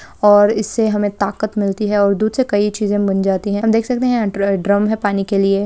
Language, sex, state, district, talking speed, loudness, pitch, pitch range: Hindi, female, Uttarakhand, Tehri Garhwal, 255 wpm, -16 LUFS, 205 Hz, 200-215 Hz